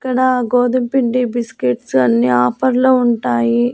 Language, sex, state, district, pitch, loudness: Telugu, female, Andhra Pradesh, Annamaya, 240 Hz, -15 LUFS